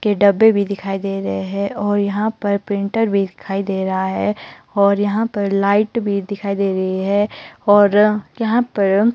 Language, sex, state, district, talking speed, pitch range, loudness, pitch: Hindi, female, Himachal Pradesh, Shimla, 190 wpm, 195-210 Hz, -18 LUFS, 200 Hz